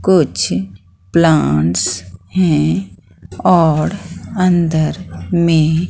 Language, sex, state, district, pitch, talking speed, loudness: Hindi, female, Bihar, Katihar, 150 Hz, 60 wpm, -15 LUFS